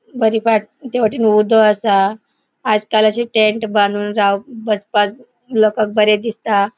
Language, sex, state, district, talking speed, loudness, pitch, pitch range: Konkani, female, Goa, North and South Goa, 135 wpm, -15 LUFS, 215 Hz, 210-225 Hz